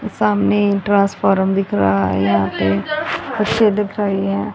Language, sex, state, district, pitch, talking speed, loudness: Hindi, female, Haryana, Rohtak, 190 Hz, 145 wpm, -17 LUFS